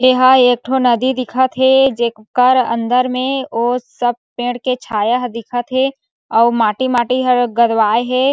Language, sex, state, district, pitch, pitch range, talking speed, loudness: Chhattisgarhi, female, Chhattisgarh, Sarguja, 250 Hz, 235-260 Hz, 150 wpm, -15 LUFS